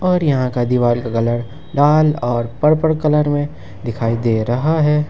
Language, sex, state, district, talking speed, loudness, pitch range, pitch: Hindi, male, Jharkhand, Ranchi, 175 wpm, -17 LUFS, 120-150 Hz, 130 Hz